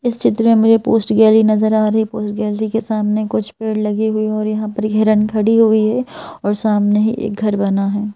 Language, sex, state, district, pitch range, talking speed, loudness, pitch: Hindi, female, Madhya Pradesh, Bhopal, 210-220 Hz, 240 wpm, -15 LUFS, 215 Hz